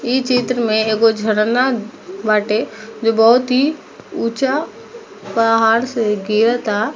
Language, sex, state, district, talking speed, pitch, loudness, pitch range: Bhojpuri, female, Bihar, East Champaran, 120 wpm, 230 Hz, -16 LUFS, 220-255 Hz